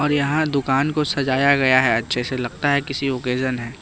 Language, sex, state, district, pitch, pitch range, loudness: Hindi, male, Bihar, West Champaran, 135 Hz, 130-140 Hz, -20 LUFS